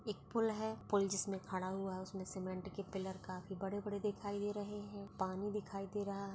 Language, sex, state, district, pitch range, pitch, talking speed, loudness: Hindi, female, Chhattisgarh, Bastar, 190-205 Hz, 200 Hz, 225 wpm, -42 LUFS